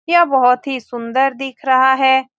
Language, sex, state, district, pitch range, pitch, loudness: Hindi, female, Bihar, Saran, 260-270 Hz, 265 Hz, -15 LUFS